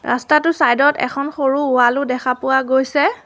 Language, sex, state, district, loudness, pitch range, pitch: Assamese, female, Assam, Sonitpur, -16 LUFS, 255-290 Hz, 270 Hz